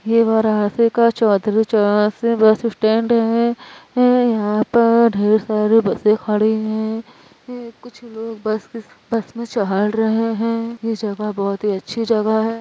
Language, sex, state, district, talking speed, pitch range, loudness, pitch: Hindi, female, Uttar Pradesh, Varanasi, 145 wpm, 215-230 Hz, -17 LUFS, 225 Hz